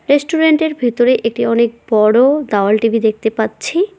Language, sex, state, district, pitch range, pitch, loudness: Bengali, female, West Bengal, Cooch Behar, 220-290 Hz, 235 Hz, -14 LUFS